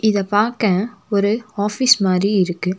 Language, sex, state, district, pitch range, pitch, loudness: Tamil, female, Tamil Nadu, Nilgiris, 195-215 Hz, 205 Hz, -18 LUFS